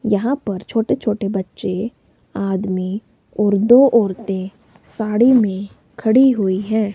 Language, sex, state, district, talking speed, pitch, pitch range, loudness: Hindi, female, Himachal Pradesh, Shimla, 120 wpm, 205 Hz, 195-225 Hz, -17 LUFS